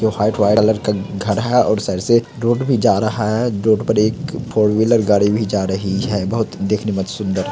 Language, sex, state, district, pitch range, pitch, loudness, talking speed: Hindi, male, Bihar, Samastipur, 100-115 Hz, 105 Hz, -17 LUFS, 230 wpm